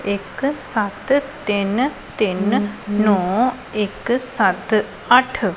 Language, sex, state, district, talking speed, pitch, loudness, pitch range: Punjabi, female, Punjab, Pathankot, 85 wpm, 215 Hz, -19 LUFS, 205-255 Hz